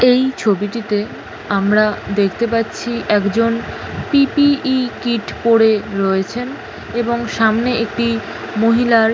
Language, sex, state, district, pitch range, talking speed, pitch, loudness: Bengali, female, West Bengal, Paschim Medinipur, 210-240 Hz, 90 wpm, 230 Hz, -17 LUFS